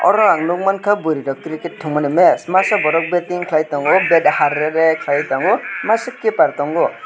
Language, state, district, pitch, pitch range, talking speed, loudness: Kokborok, Tripura, West Tripura, 165 Hz, 150-185 Hz, 170 wpm, -16 LUFS